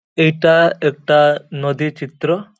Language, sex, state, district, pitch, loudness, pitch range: Bengali, male, West Bengal, Paschim Medinipur, 150 Hz, -16 LUFS, 145-165 Hz